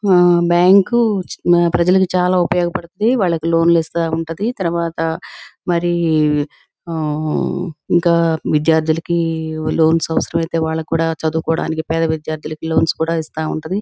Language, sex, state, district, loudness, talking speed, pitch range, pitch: Telugu, female, Andhra Pradesh, Guntur, -17 LUFS, 110 wpm, 160-175 Hz, 165 Hz